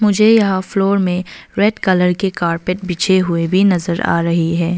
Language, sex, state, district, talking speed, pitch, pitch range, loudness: Hindi, female, Arunachal Pradesh, Longding, 190 wpm, 185 Hz, 170-195 Hz, -15 LUFS